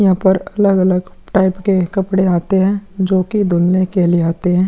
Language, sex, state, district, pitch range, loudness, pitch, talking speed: Hindi, male, Bihar, Vaishali, 180-195 Hz, -15 LUFS, 190 Hz, 190 wpm